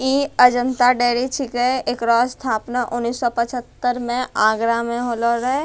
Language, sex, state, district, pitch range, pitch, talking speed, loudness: Angika, female, Bihar, Bhagalpur, 235-250 Hz, 245 Hz, 150 wpm, -19 LUFS